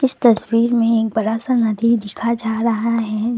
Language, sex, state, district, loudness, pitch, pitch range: Hindi, female, Assam, Kamrup Metropolitan, -17 LUFS, 230 Hz, 220-235 Hz